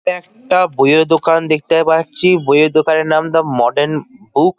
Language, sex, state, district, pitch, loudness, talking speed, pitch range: Bengali, male, West Bengal, Paschim Medinipur, 160 Hz, -13 LUFS, 155 wpm, 155-180 Hz